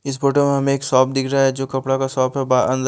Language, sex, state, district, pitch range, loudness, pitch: Hindi, male, Punjab, Fazilka, 130-140 Hz, -18 LUFS, 135 Hz